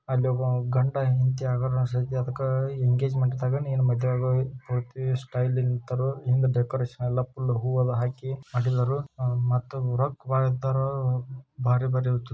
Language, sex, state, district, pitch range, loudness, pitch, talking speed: Kannada, male, Karnataka, Shimoga, 125-130 Hz, -26 LUFS, 130 Hz, 140 wpm